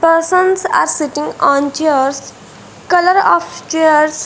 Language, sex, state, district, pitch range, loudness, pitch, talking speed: English, female, Punjab, Fazilka, 295-355 Hz, -13 LUFS, 315 Hz, 125 wpm